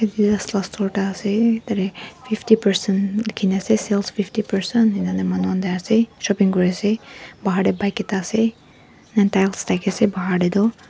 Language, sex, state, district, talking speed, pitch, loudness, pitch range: Nagamese, female, Nagaland, Dimapur, 190 wpm, 200 Hz, -20 LUFS, 195-220 Hz